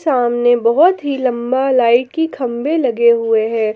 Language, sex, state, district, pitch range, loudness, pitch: Hindi, female, Jharkhand, Palamu, 235-275 Hz, -15 LUFS, 250 Hz